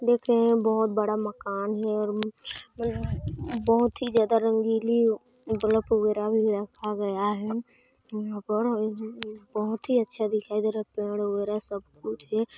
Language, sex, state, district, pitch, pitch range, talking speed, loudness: Hindi, female, Chhattisgarh, Sarguja, 215 Hz, 210-225 Hz, 145 wpm, -27 LUFS